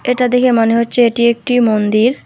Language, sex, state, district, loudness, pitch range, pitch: Bengali, female, West Bengal, Alipurduar, -13 LUFS, 230-250 Hz, 235 Hz